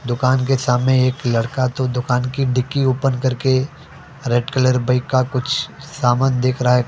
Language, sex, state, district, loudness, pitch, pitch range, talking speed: Hindi, male, Delhi, New Delhi, -18 LUFS, 130 Hz, 125-135 Hz, 175 wpm